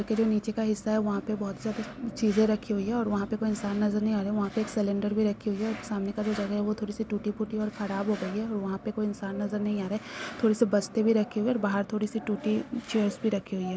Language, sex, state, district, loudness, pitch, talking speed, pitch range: Hindi, female, Bihar, Kishanganj, -29 LUFS, 210 Hz, 305 wpm, 205-220 Hz